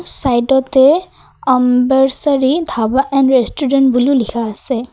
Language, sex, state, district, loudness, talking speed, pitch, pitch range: Assamese, female, Assam, Kamrup Metropolitan, -13 LUFS, 95 wpm, 265 Hz, 250-275 Hz